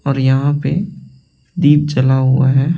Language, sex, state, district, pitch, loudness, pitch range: Hindi, male, Delhi, New Delhi, 135 Hz, -14 LUFS, 130-150 Hz